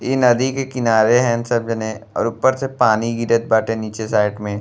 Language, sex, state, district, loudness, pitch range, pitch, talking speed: Bhojpuri, male, Uttar Pradesh, Gorakhpur, -18 LUFS, 110-125 Hz, 115 Hz, 210 wpm